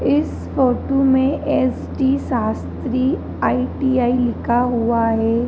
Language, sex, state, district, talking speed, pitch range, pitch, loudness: Hindi, female, Uttar Pradesh, Jalaun, 130 wpm, 240-270 Hz, 255 Hz, -19 LUFS